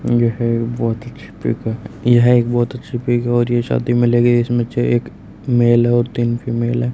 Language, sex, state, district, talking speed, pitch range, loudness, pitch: Hindi, male, Haryana, Rohtak, 235 wpm, 115-120 Hz, -17 LUFS, 120 Hz